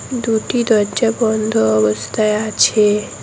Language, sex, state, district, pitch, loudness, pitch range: Bengali, female, West Bengal, Cooch Behar, 215 Hz, -16 LUFS, 205-225 Hz